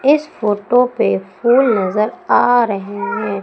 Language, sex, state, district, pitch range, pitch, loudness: Hindi, female, Madhya Pradesh, Umaria, 200-245 Hz, 225 Hz, -15 LUFS